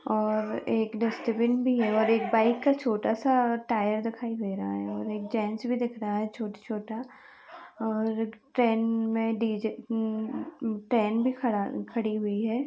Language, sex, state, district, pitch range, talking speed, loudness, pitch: Hindi, female, Uttar Pradesh, Varanasi, 215-235 Hz, 185 wpm, -28 LUFS, 225 Hz